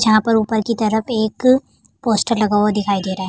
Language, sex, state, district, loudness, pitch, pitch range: Hindi, female, Uttar Pradesh, Jalaun, -17 LUFS, 220 Hz, 210-230 Hz